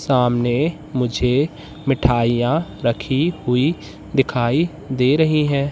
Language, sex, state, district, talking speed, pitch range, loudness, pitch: Hindi, male, Madhya Pradesh, Katni, 95 wpm, 125-155 Hz, -19 LUFS, 135 Hz